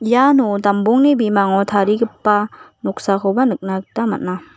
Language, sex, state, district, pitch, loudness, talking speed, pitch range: Garo, female, Meghalaya, West Garo Hills, 210 Hz, -16 LUFS, 105 wpm, 195-230 Hz